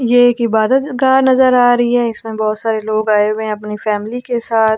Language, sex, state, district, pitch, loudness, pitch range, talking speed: Hindi, female, Delhi, New Delhi, 225 Hz, -14 LUFS, 215-245 Hz, 225 wpm